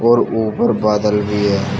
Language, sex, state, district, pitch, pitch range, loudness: Hindi, male, Uttar Pradesh, Shamli, 105 Hz, 105-110 Hz, -16 LUFS